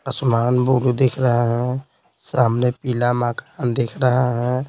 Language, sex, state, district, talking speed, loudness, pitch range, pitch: Hindi, male, Bihar, Patna, 140 wpm, -19 LUFS, 120-130 Hz, 125 Hz